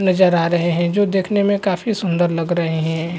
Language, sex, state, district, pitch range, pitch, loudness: Hindi, male, Bihar, Araria, 170-195 Hz, 175 Hz, -18 LUFS